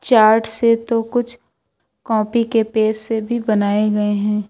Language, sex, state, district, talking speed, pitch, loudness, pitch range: Hindi, female, Uttar Pradesh, Lucknow, 160 wpm, 220 Hz, -17 LUFS, 215-230 Hz